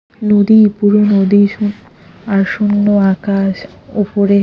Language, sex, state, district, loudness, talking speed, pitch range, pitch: Bengali, female, Odisha, Khordha, -12 LUFS, 110 wpm, 200-210 Hz, 205 Hz